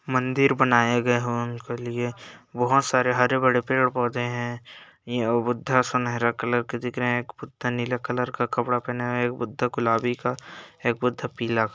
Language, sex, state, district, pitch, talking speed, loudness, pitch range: Hindi, male, Uttar Pradesh, Hamirpur, 120 Hz, 185 wpm, -24 LUFS, 120-125 Hz